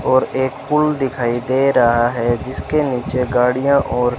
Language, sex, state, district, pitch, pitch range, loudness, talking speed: Hindi, male, Rajasthan, Bikaner, 130 Hz, 120-135 Hz, -17 LUFS, 155 wpm